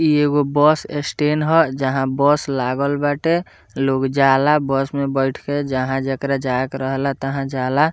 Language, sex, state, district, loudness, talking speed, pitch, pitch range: Bhojpuri, male, Bihar, Muzaffarpur, -19 LUFS, 165 wpm, 140 Hz, 135-145 Hz